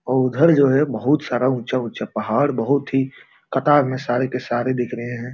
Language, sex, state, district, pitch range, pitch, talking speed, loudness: Hindi, male, Bihar, Jamui, 120-140 Hz, 130 Hz, 200 wpm, -20 LUFS